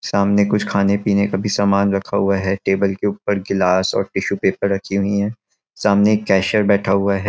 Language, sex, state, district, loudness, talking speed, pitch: Hindi, male, Chhattisgarh, Raigarh, -18 LUFS, 205 wpm, 100 Hz